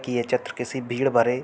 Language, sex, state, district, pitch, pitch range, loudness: Hindi, male, Uttar Pradesh, Hamirpur, 125 Hz, 120-130 Hz, -25 LUFS